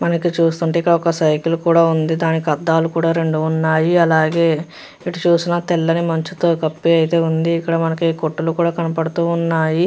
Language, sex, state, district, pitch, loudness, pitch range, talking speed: Telugu, female, Andhra Pradesh, Chittoor, 165 Hz, -17 LUFS, 160-170 Hz, 150 wpm